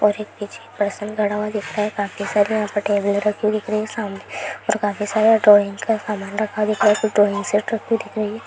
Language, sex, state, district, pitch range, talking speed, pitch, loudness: Hindi, female, Bihar, Saharsa, 205-215 Hz, 260 wpm, 210 Hz, -20 LUFS